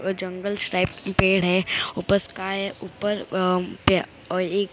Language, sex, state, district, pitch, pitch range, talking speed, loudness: Hindi, female, Maharashtra, Mumbai Suburban, 190 Hz, 185-200 Hz, 150 wpm, -24 LUFS